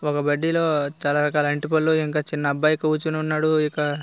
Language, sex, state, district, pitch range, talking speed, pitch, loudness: Telugu, male, Andhra Pradesh, Visakhapatnam, 145-155 Hz, 195 wpm, 150 Hz, -22 LUFS